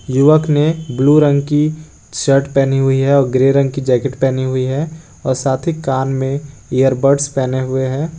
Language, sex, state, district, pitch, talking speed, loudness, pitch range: Hindi, male, Jharkhand, Garhwa, 135 Hz, 190 wpm, -15 LUFS, 130-145 Hz